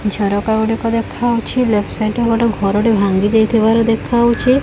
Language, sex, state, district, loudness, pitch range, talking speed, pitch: Odia, female, Odisha, Khordha, -15 LUFS, 210-235 Hz, 155 wpm, 225 Hz